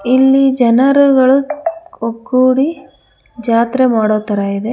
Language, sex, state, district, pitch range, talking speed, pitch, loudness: Kannada, female, Karnataka, Bangalore, 230-275 Hz, 90 wpm, 255 Hz, -13 LUFS